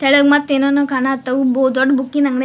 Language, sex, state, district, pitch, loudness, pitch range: Kannada, female, Karnataka, Dharwad, 270 Hz, -15 LUFS, 260-280 Hz